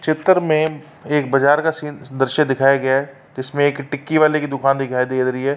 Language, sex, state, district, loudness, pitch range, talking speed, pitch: Hindi, male, Uttar Pradesh, Varanasi, -18 LUFS, 135-155 Hz, 215 wpm, 140 Hz